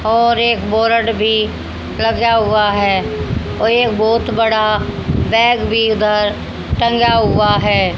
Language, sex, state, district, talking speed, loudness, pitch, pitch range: Hindi, female, Haryana, Jhajjar, 130 wpm, -14 LUFS, 225 Hz, 215-230 Hz